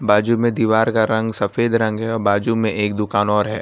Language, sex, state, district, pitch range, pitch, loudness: Hindi, male, Gujarat, Valsad, 105-115 Hz, 110 Hz, -18 LUFS